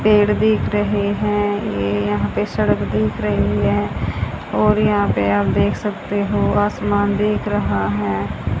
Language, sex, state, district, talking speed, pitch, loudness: Hindi, female, Haryana, Charkhi Dadri, 155 wpm, 105 Hz, -18 LUFS